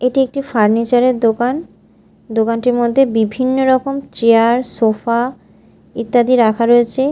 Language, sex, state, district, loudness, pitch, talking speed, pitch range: Bengali, female, Odisha, Malkangiri, -14 LUFS, 240 Hz, 120 wpm, 230-260 Hz